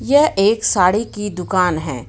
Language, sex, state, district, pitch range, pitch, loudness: Hindi, female, Jharkhand, Ranchi, 180-215 Hz, 195 Hz, -16 LUFS